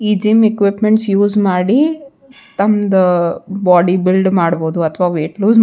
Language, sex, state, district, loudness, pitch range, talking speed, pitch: Kannada, female, Karnataka, Bijapur, -13 LUFS, 180-215 Hz, 140 wpm, 200 Hz